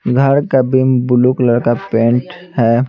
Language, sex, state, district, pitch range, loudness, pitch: Hindi, male, Bihar, Patna, 120-130 Hz, -13 LUFS, 125 Hz